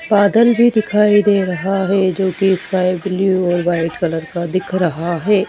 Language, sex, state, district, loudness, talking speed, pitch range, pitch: Hindi, female, Madhya Pradesh, Dhar, -16 LUFS, 175 wpm, 175-205 Hz, 190 Hz